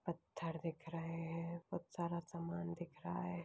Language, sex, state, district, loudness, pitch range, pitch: Hindi, female, Chhattisgarh, Balrampur, -45 LUFS, 165-170 Hz, 170 Hz